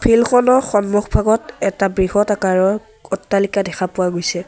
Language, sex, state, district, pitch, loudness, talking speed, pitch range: Assamese, male, Assam, Sonitpur, 200 Hz, -17 LUFS, 120 wpm, 190-220 Hz